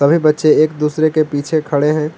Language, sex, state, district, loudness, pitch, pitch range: Hindi, male, Jharkhand, Garhwa, -14 LUFS, 155 Hz, 150-155 Hz